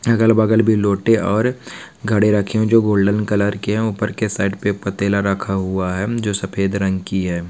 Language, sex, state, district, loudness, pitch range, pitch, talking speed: Hindi, male, Maharashtra, Solapur, -18 LUFS, 100-110 Hz, 100 Hz, 215 wpm